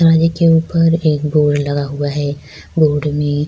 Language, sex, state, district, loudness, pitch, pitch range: Urdu, female, Bihar, Saharsa, -15 LUFS, 150 Hz, 145-165 Hz